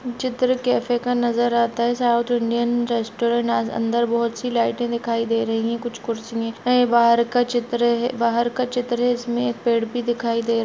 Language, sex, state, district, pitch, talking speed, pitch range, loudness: Hindi, female, Chhattisgarh, Raigarh, 235 Hz, 185 wpm, 235-240 Hz, -21 LUFS